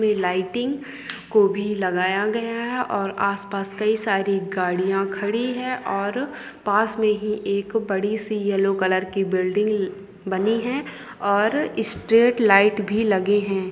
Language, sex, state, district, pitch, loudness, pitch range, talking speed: Hindi, female, Chhattisgarh, Balrampur, 205 Hz, -22 LUFS, 195-220 Hz, 145 wpm